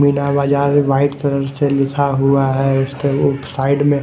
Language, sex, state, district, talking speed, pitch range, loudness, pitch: Hindi, female, Himachal Pradesh, Shimla, 165 wpm, 135-140 Hz, -16 LUFS, 140 Hz